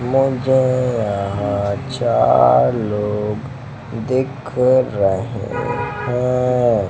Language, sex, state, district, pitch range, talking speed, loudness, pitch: Hindi, male, Madhya Pradesh, Dhar, 105-130 Hz, 60 wpm, -18 LUFS, 120 Hz